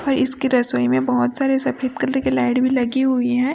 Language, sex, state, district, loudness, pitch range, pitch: Hindi, female, Chhattisgarh, Raipur, -18 LUFS, 245-265 Hz, 255 Hz